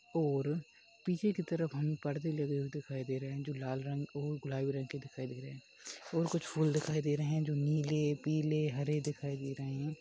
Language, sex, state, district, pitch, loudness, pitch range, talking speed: Hindi, male, Uttar Pradesh, Ghazipur, 150 Hz, -36 LUFS, 140-155 Hz, 225 wpm